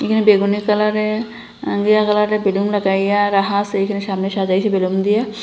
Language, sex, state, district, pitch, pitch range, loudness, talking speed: Bengali, female, Assam, Hailakandi, 205 Hz, 195-215 Hz, -17 LUFS, 165 wpm